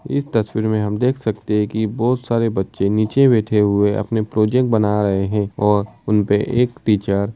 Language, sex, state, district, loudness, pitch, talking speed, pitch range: Hindi, male, Uttar Pradesh, Varanasi, -18 LUFS, 105 Hz, 205 wpm, 105-115 Hz